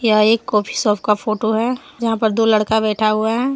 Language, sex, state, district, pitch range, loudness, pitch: Hindi, female, Jharkhand, Deoghar, 215-230 Hz, -17 LUFS, 220 Hz